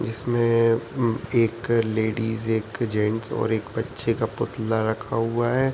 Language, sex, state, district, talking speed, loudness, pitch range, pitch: Hindi, male, Uttar Pradesh, Varanasi, 145 wpm, -24 LUFS, 110-120 Hz, 115 Hz